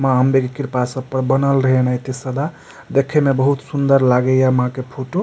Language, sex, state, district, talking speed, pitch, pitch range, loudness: Maithili, male, Bihar, Supaul, 240 wpm, 130 Hz, 130-140 Hz, -17 LUFS